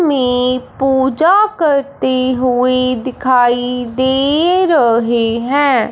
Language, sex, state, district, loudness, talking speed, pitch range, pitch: Hindi, female, Punjab, Fazilka, -13 LUFS, 80 wpm, 250-285 Hz, 255 Hz